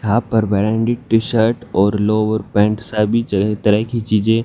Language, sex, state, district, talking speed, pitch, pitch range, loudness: Hindi, male, Haryana, Jhajjar, 175 wpm, 110 Hz, 105-115 Hz, -17 LUFS